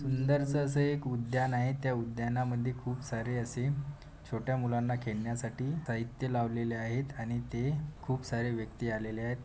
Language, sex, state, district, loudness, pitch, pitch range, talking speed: Marathi, male, Maharashtra, Pune, -34 LUFS, 125 Hz, 115-130 Hz, 140 wpm